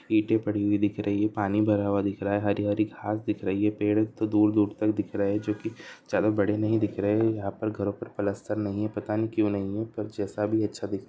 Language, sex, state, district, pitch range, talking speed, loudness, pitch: Hindi, male, Uttar Pradesh, Deoria, 100-110 Hz, 275 wpm, -27 LUFS, 105 Hz